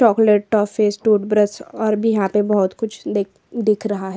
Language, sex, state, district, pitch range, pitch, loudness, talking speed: Hindi, female, Maharashtra, Chandrapur, 205-220 Hz, 210 Hz, -18 LUFS, 175 wpm